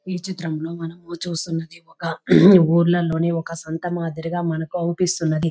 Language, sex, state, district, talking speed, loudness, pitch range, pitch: Telugu, female, Telangana, Nalgonda, 120 wpm, -20 LUFS, 165-175 Hz, 170 Hz